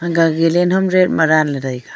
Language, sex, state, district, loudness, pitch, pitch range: Wancho, female, Arunachal Pradesh, Longding, -15 LUFS, 165 Hz, 155-175 Hz